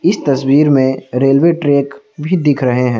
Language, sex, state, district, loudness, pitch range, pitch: Hindi, male, Assam, Kamrup Metropolitan, -13 LUFS, 130-145 Hz, 140 Hz